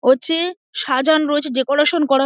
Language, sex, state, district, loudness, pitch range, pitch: Bengali, female, West Bengal, Dakshin Dinajpur, -17 LUFS, 270-315 Hz, 295 Hz